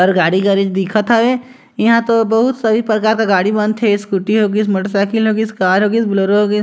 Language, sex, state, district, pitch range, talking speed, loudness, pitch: Chhattisgarhi, male, Chhattisgarh, Sarguja, 195-225 Hz, 200 wpm, -14 LUFS, 215 Hz